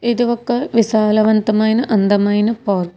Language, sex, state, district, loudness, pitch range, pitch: Telugu, female, Telangana, Hyderabad, -15 LUFS, 210-235 Hz, 220 Hz